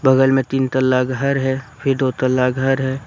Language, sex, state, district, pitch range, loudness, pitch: Hindi, male, Jharkhand, Deoghar, 130-135 Hz, -18 LUFS, 130 Hz